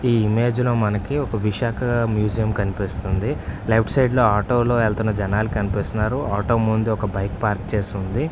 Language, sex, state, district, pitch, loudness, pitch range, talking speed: Telugu, male, Andhra Pradesh, Visakhapatnam, 110 Hz, -21 LUFS, 105-120 Hz, 160 wpm